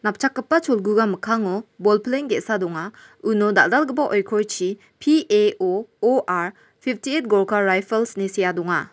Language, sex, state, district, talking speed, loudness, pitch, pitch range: Garo, female, Meghalaya, West Garo Hills, 115 wpm, -21 LUFS, 215 Hz, 195-260 Hz